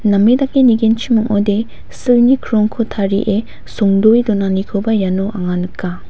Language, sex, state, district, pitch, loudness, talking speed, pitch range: Garo, female, Meghalaya, West Garo Hills, 210 Hz, -14 LUFS, 120 wpm, 195-230 Hz